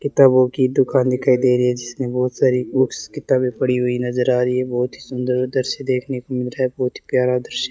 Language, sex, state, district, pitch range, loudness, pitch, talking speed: Hindi, male, Rajasthan, Bikaner, 125-130 Hz, -19 LUFS, 125 Hz, 240 wpm